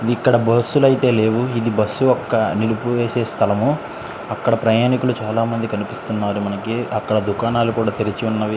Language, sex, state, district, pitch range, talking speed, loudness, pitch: Telugu, male, Andhra Pradesh, Krishna, 110-120 Hz, 135 wpm, -19 LUFS, 115 Hz